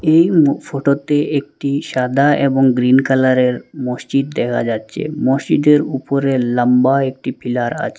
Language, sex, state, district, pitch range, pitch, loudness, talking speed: Bengali, male, Assam, Hailakandi, 130-145 Hz, 135 Hz, -16 LUFS, 135 wpm